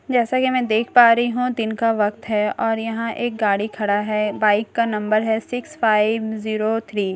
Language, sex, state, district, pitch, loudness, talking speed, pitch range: Hindi, female, Bihar, Katihar, 220 Hz, -20 LUFS, 225 wpm, 210-235 Hz